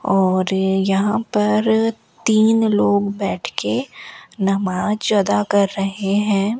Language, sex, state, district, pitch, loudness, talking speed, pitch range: Hindi, female, Rajasthan, Bikaner, 200 Hz, -18 LUFS, 110 wpm, 195-215 Hz